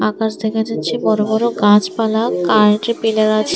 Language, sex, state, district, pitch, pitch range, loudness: Bengali, female, Tripura, West Tripura, 220 Hz, 210-225 Hz, -15 LUFS